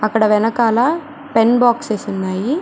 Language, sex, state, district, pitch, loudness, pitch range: Telugu, female, Andhra Pradesh, Chittoor, 230 Hz, -16 LUFS, 215-250 Hz